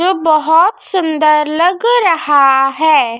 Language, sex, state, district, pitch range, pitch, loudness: Hindi, female, Madhya Pradesh, Dhar, 300-370 Hz, 315 Hz, -11 LUFS